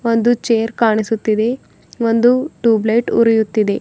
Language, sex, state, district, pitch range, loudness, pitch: Kannada, female, Karnataka, Bidar, 220-235 Hz, -15 LUFS, 230 Hz